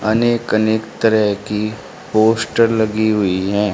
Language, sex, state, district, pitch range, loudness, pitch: Hindi, male, Haryana, Rohtak, 105-110 Hz, -16 LUFS, 110 Hz